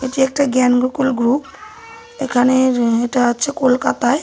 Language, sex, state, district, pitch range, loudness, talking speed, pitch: Bengali, female, West Bengal, North 24 Parganas, 250-280 Hz, -16 LUFS, 125 wpm, 260 Hz